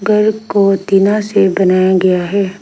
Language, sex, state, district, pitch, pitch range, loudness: Hindi, female, Arunachal Pradesh, Lower Dibang Valley, 195 Hz, 185-205 Hz, -12 LUFS